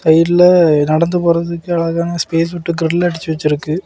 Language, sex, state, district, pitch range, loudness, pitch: Tamil, male, Tamil Nadu, Kanyakumari, 160-175 Hz, -14 LUFS, 170 Hz